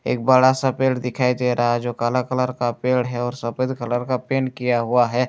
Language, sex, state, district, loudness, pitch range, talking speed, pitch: Hindi, male, Bihar, Katihar, -20 LUFS, 120-130 Hz, 250 wpm, 125 Hz